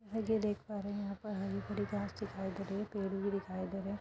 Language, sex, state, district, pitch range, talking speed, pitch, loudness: Hindi, female, Uttar Pradesh, Etah, 195-210 Hz, 285 wpm, 200 Hz, -39 LUFS